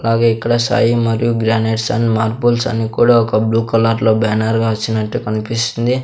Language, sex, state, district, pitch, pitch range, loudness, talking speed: Telugu, male, Andhra Pradesh, Sri Satya Sai, 115 Hz, 110-120 Hz, -15 LUFS, 170 wpm